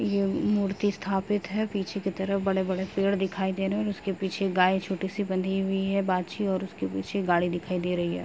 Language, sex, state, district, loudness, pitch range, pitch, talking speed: Hindi, female, Uttar Pradesh, Jalaun, -28 LUFS, 185-195 Hz, 195 Hz, 225 wpm